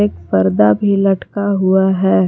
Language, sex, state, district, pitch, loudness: Hindi, female, Jharkhand, Palamu, 190 Hz, -14 LUFS